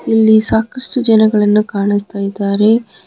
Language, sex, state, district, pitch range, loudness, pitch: Kannada, female, Karnataka, Bidar, 205-220 Hz, -13 LUFS, 215 Hz